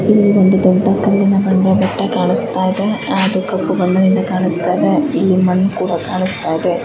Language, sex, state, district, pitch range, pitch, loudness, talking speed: Kannada, female, Karnataka, Dharwad, 185-200 Hz, 190 Hz, -14 LUFS, 165 wpm